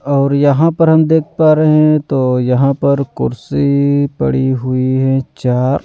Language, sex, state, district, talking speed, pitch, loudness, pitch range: Hindi, male, Delhi, New Delhi, 165 wpm, 140 Hz, -13 LUFS, 130-155 Hz